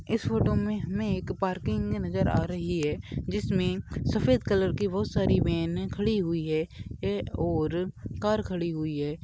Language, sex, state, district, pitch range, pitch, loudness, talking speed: Hindi, male, Bihar, Gaya, 110-185 Hz, 160 Hz, -29 LUFS, 160 wpm